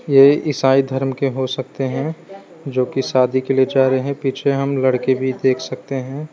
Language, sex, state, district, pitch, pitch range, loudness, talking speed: Hindi, male, Gujarat, Valsad, 135 Hz, 130-140 Hz, -18 LUFS, 200 wpm